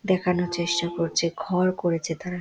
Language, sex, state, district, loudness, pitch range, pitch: Bengali, female, West Bengal, Dakshin Dinajpur, -25 LUFS, 170-180 Hz, 175 Hz